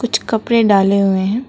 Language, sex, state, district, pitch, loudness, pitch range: Hindi, female, West Bengal, Alipurduar, 220 Hz, -14 LUFS, 195-230 Hz